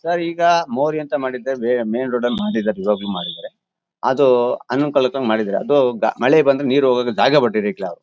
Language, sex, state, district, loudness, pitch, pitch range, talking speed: Kannada, male, Karnataka, Mysore, -18 LUFS, 125 Hz, 110-145 Hz, 170 wpm